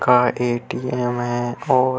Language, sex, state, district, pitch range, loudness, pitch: Hindi, female, Bihar, Vaishali, 120-125 Hz, -21 LUFS, 125 Hz